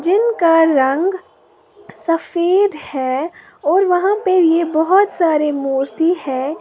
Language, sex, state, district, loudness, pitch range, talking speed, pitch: Hindi, female, Uttar Pradesh, Lalitpur, -16 LUFS, 300-380 Hz, 110 wpm, 335 Hz